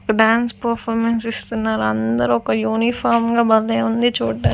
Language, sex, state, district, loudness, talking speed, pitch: Telugu, female, Andhra Pradesh, Sri Satya Sai, -18 LUFS, 130 wpm, 220 Hz